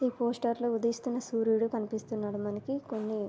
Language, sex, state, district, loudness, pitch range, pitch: Telugu, female, Andhra Pradesh, Anantapur, -32 LUFS, 215-240 Hz, 230 Hz